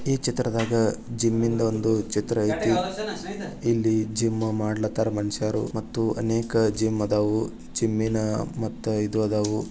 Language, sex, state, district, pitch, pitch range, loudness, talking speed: Kannada, male, Karnataka, Bijapur, 110 Hz, 110-115 Hz, -25 LUFS, 110 wpm